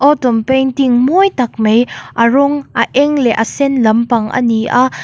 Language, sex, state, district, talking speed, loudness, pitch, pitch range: Mizo, female, Mizoram, Aizawl, 190 wpm, -12 LUFS, 250 Hz, 235-275 Hz